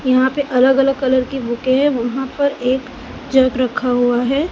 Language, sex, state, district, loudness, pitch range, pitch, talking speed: Hindi, female, Gujarat, Gandhinagar, -16 LUFS, 250-270 Hz, 260 Hz, 200 wpm